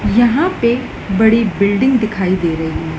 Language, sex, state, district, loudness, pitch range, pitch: Hindi, female, Madhya Pradesh, Dhar, -15 LUFS, 190-240 Hz, 220 Hz